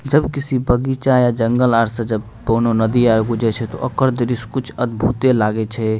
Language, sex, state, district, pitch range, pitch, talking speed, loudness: Maithili, male, Bihar, Madhepura, 115-130 Hz, 120 Hz, 210 wpm, -17 LUFS